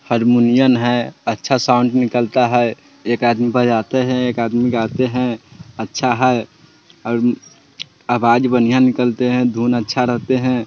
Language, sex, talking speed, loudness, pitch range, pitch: Bajjika, male, 145 wpm, -16 LUFS, 120-130 Hz, 125 Hz